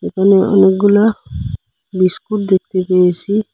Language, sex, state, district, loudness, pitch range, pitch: Bengali, male, Assam, Hailakandi, -13 LUFS, 185-205 Hz, 195 Hz